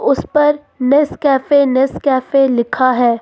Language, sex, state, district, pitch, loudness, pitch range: Hindi, female, Jharkhand, Ranchi, 270 Hz, -14 LUFS, 255-285 Hz